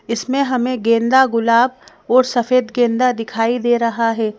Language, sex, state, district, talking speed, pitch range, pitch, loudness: Hindi, female, Madhya Pradesh, Bhopal, 150 wpm, 230-255 Hz, 240 Hz, -16 LUFS